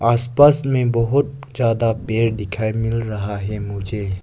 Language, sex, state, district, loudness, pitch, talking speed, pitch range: Hindi, male, Arunachal Pradesh, Lower Dibang Valley, -19 LUFS, 115 Hz, 155 wpm, 105-120 Hz